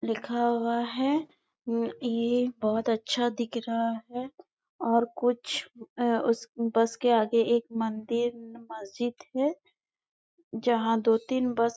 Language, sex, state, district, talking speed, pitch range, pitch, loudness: Hindi, female, Chhattisgarh, Bastar, 120 wpm, 230-245 Hz, 235 Hz, -28 LUFS